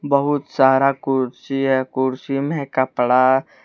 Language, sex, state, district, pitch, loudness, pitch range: Hindi, male, Jharkhand, Deoghar, 135 Hz, -19 LUFS, 130-140 Hz